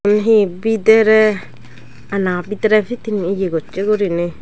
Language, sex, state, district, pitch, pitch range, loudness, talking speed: Chakma, female, Tripura, Dhalai, 205 Hz, 180-215 Hz, -16 LUFS, 120 wpm